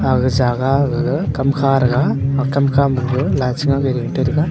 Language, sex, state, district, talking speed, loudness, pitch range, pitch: Wancho, male, Arunachal Pradesh, Longding, 210 wpm, -17 LUFS, 130-140 Hz, 135 Hz